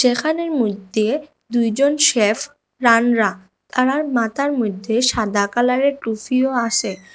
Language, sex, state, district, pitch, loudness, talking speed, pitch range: Bengali, female, Assam, Hailakandi, 235 Hz, -18 LUFS, 90 wpm, 215-275 Hz